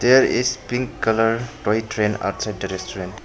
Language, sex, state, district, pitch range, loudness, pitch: English, male, Arunachal Pradesh, Papum Pare, 100-120 Hz, -21 LUFS, 110 Hz